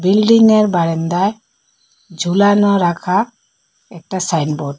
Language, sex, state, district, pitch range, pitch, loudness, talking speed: Bengali, female, Assam, Hailakandi, 170-215 Hz, 185 Hz, -14 LUFS, 90 wpm